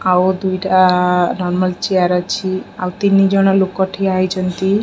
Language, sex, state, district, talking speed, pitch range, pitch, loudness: Odia, female, Odisha, Khordha, 150 wpm, 180-195 Hz, 185 Hz, -15 LUFS